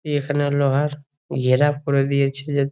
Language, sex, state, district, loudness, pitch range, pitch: Bengali, male, West Bengal, Jalpaiguri, -20 LUFS, 140-145 Hz, 145 Hz